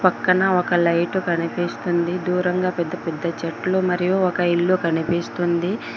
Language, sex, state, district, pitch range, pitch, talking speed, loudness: Telugu, female, Telangana, Mahabubabad, 170-185 Hz, 175 Hz, 110 wpm, -21 LUFS